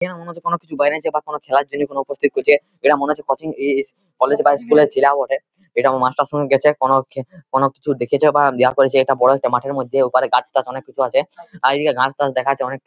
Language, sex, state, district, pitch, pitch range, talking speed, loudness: Bengali, male, West Bengal, Purulia, 140 Hz, 135-150 Hz, 245 wpm, -17 LUFS